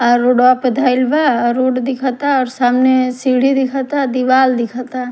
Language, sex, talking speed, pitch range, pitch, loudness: Bhojpuri, female, 175 wpm, 250-265 Hz, 255 Hz, -14 LUFS